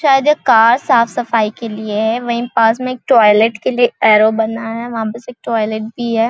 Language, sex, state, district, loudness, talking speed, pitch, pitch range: Hindi, female, Chhattisgarh, Balrampur, -14 LUFS, 240 wpm, 230 Hz, 220-240 Hz